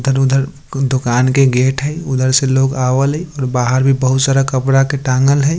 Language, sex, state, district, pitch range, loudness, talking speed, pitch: Bajjika, male, Bihar, Vaishali, 130-135 Hz, -14 LUFS, 205 wpm, 135 Hz